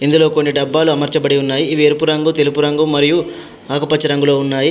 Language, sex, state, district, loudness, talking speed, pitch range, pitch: Telugu, male, Telangana, Adilabad, -14 LUFS, 180 wpm, 145-155 Hz, 150 Hz